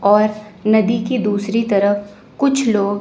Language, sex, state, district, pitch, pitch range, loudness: Hindi, female, Chandigarh, Chandigarh, 210 Hz, 205-230 Hz, -17 LUFS